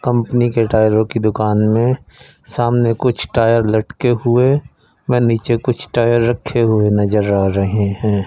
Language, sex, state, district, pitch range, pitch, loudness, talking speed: Hindi, male, Punjab, Fazilka, 105-120 Hz, 115 Hz, -15 LUFS, 150 wpm